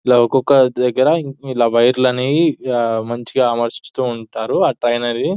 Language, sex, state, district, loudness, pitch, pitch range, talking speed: Telugu, male, Telangana, Nalgonda, -16 LUFS, 125 Hz, 120-130 Hz, 110 wpm